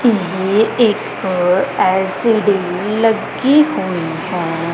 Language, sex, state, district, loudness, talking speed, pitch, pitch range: Punjabi, female, Punjab, Kapurthala, -15 LUFS, 75 wpm, 190 Hz, 180-225 Hz